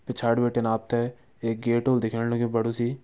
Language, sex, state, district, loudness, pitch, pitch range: Garhwali, male, Uttarakhand, Uttarkashi, -26 LUFS, 120 Hz, 115-120 Hz